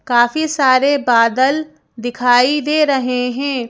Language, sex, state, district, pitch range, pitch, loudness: Hindi, female, Madhya Pradesh, Bhopal, 245-290 Hz, 260 Hz, -14 LUFS